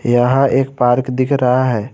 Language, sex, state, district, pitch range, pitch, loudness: Hindi, male, Jharkhand, Garhwa, 125-135 Hz, 130 Hz, -15 LUFS